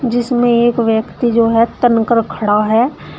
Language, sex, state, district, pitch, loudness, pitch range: Hindi, female, Uttar Pradesh, Shamli, 235 Hz, -14 LUFS, 225-240 Hz